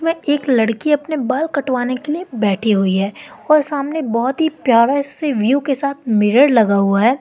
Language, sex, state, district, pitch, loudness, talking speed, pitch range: Hindi, female, Madhya Pradesh, Katni, 265 Hz, -16 LUFS, 200 wpm, 225-290 Hz